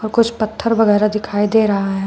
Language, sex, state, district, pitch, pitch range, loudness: Hindi, female, Uttar Pradesh, Shamli, 215 Hz, 205-225 Hz, -16 LUFS